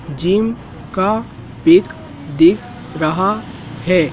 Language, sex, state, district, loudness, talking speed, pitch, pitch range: Hindi, male, Madhya Pradesh, Dhar, -16 LUFS, 85 wpm, 190 Hz, 160-225 Hz